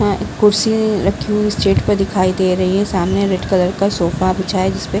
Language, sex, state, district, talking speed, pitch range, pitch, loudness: Hindi, female, Bihar, Saharsa, 215 wpm, 185-205 Hz, 195 Hz, -16 LUFS